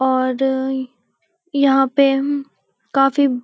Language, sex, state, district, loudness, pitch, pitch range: Hindi, female, Uttarakhand, Uttarkashi, -18 LUFS, 270 Hz, 260-280 Hz